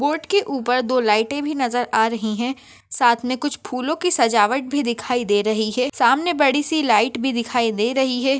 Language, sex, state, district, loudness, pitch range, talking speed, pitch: Hindi, female, Maharashtra, Nagpur, -20 LUFS, 235-280 Hz, 215 wpm, 255 Hz